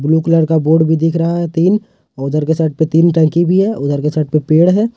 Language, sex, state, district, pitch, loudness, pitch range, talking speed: Hindi, male, Jharkhand, Ranchi, 160 Hz, -13 LUFS, 155-170 Hz, 280 wpm